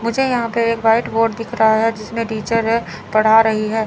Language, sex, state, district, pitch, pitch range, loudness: Hindi, female, Chandigarh, Chandigarh, 225 Hz, 220-230 Hz, -17 LUFS